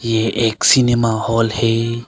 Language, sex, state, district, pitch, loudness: Hindi, male, Arunachal Pradesh, Longding, 115 Hz, -15 LUFS